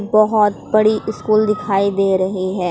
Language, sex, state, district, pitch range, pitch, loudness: Hindi, female, Jharkhand, Palamu, 195-215 Hz, 205 Hz, -16 LUFS